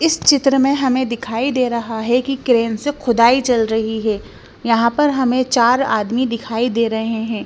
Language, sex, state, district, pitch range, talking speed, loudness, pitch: Hindi, female, Bihar, West Champaran, 230-260 Hz, 195 wpm, -17 LUFS, 240 Hz